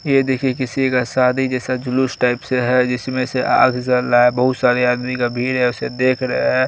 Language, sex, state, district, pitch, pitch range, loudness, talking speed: Hindi, male, Bihar, Araria, 125 Hz, 125-130 Hz, -17 LUFS, 225 wpm